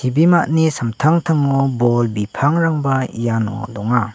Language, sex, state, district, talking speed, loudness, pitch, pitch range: Garo, male, Meghalaya, West Garo Hills, 70 wpm, -17 LUFS, 130 Hz, 115-155 Hz